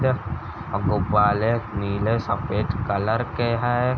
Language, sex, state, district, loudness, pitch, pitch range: Hindi, male, Uttar Pradesh, Jalaun, -23 LUFS, 110 Hz, 105-120 Hz